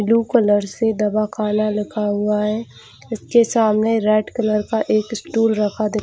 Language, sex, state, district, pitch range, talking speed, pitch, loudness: Hindi, female, Jharkhand, Jamtara, 210-225 Hz, 150 wpm, 215 Hz, -18 LUFS